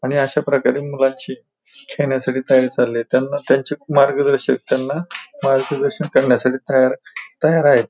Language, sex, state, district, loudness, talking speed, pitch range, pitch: Marathi, male, Maharashtra, Pune, -17 LUFS, 120 wpm, 130-145 Hz, 135 Hz